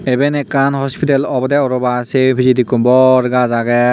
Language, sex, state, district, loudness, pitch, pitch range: Chakma, male, Tripura, Unakoti, -13 LUFS, 130 Hz, 125-135 Hz